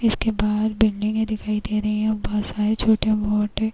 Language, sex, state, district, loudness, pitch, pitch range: Hindi, female, Uttar Pradesh, Jyotiba Phule Nagar, -22 LUFS, 215 Hz, 210-220 Hz